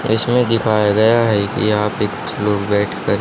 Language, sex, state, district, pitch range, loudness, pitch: Hindi, male, Haryana, Charkhi Dadri, 105-115 Hz, -16 LUFS, 105 Hz